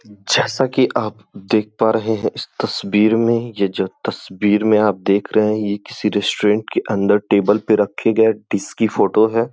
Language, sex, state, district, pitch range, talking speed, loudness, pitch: Hindi, male, Uttar Pradesh, Gorakhpur, 100-110 Hz, 195 wpm, -17 LUFS, 105 Hz